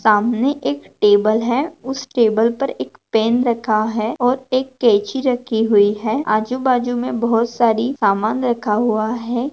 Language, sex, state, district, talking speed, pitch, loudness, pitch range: Hindi, female, Maharashtra, Nagpur, 155 wpm, 235 Hz, -18 LUFS, 215-255 Hz